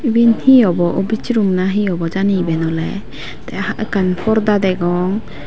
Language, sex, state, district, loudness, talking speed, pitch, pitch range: Chakma, female, Tripura, Dhalai, -16 LUFS, 155 wpm, 195 Hz, 175-220 Hz